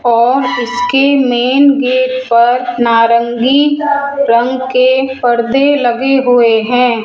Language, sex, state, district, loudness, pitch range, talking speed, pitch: Hindi, female, Rajasthan, Jaipur, -11 LUFS, 240-265 Hz, 100 wpm, 250 Hz